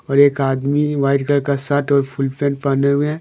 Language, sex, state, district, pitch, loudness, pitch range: Hindi, male, Jharkhand, Deoghar, 140 Hz, -17 LUFS, 140-145 Hz